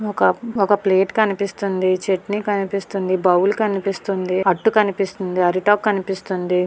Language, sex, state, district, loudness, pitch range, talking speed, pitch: Telugu, female, Andhra Pradesh, Visakhapatnam, -19 LUFS, 185-205 Hz, 100 wpm, 195 Hz